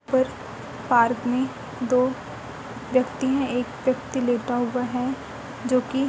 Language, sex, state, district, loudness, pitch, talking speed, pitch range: Hindi, female, Uttar Pradesh, Budaun, -24 LUFS, 250 Hz, 130 wpm, 245-260 Hz